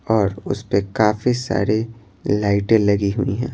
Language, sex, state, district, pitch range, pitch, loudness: Hindi, male, Bihar, Patna, 100-115 Hz, 105 Hz, -19 LUFS